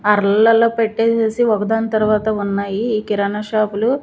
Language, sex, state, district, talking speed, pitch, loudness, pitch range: Telugu, female, Andhra Pradesh, Manyam, 135 wpm, 215 Hz, -17 LUFS, 210-225 Hz